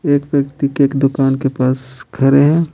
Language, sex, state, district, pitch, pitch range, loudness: Hindi, male, Bihar, Patna, 140 Hz, 135-145 Hz, -15 LUFS